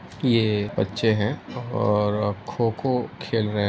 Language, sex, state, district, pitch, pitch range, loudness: Hindi, male, Uttar Pradesh, Gorakhpur, 110 Hz, 105-120 Hz, -24 LUFS